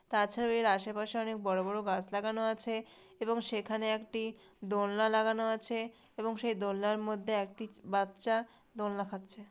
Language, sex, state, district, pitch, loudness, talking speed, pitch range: Bengali, female, West Bengal, Dakshin Dinajpur, 220 Hz, -34 LUFS, 150 wpm, 205-225 Hz